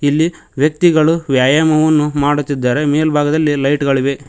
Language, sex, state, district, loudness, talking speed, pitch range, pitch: Kannada, male, Karnataka, Koppal, -14 LUFS, 100 wpm, 140-155 Hz, 145 Hz